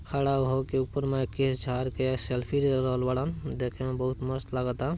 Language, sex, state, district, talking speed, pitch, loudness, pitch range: Bhojpuri, male, Bihar, Gopalganj, 195 wpm, 130 Hz, -29 LUFS, 130-135 Hz